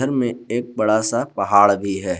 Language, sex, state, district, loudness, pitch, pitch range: Hindi, male, Jharkhand, Garhwa, -19 LUFS, 110 Hz, 100-120 Hz